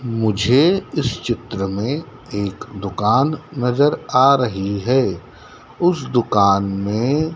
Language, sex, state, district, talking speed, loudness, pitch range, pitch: Hindi, male, Madhya Pradesh, Dhar, 105 wpm, -18 LUFS, 105-140 Hz, 125 Hz